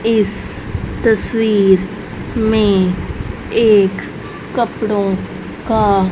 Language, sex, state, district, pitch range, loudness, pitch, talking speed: Hindi, female, Haryana, Rohtak, 190-220 Hz, -16 LUFS, 205 Hz, 70 wpm